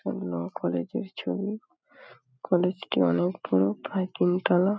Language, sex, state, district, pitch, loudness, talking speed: Bengali, female, West Bengal, Paschim Medinipur, 175 Hz, -27 LUFS, 150 wpm